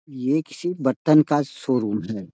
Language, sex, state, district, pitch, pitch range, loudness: Hindi, male, Bihar, Jamui, 140 Hz, 125-155 Hz, -22 LUFS